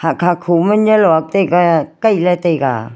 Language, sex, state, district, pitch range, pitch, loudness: Wancho, female, Arunachal Pradesh, Longding, 160-195 Hz, 175 Hz, -13 LUFS